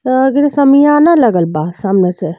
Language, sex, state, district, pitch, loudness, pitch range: Bhojpuri, female, Uttar Pradesh, Deoria, 255 Hz, -11 LUFS, 180-285 Hz